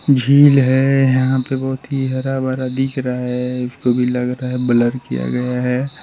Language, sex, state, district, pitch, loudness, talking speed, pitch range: Hindi, male, Chhattisgarh, Sarguja, 130 Hz, -17 LUFS, 200 wpm, 125-135 Hz